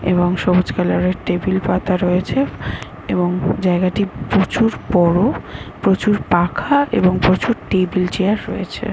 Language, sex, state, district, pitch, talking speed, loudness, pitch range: Bengali, male, West Bengal, North 24 Parganas, 185 Hz, 130 wpm, -17 LUFS, 180-195 Hz